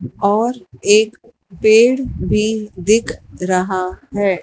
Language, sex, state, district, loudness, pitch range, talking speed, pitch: Hindi, female, Madhya Pradesh, Dhar, -16 LUFS, 190-220 Hz, 95 wpm, 210 Hz